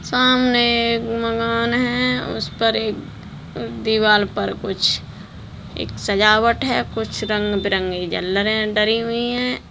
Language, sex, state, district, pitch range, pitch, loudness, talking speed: Hindi, female, Bihar, Darbhanga, 205-235 Hz, 220 Hz, -19 LUFS, 115 wpm